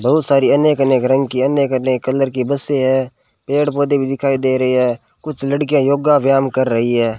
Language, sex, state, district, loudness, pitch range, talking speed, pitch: Hindi, male, Rajasthan, Bikaner, -16 LUFS, 130-140 Hz, 215 wpm, 135 Hz